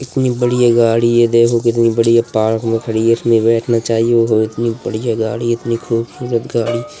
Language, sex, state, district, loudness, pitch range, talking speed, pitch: Hindi, male, Uttar Pradesh, Budaun, -15 LUFS, 115-120 Hz, 165 wpm, 115 Hz